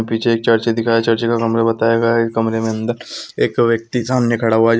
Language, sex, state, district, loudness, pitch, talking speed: Hindi, male, Bihar, Araria, -16 LUFS, 115 Hz, 285 wpm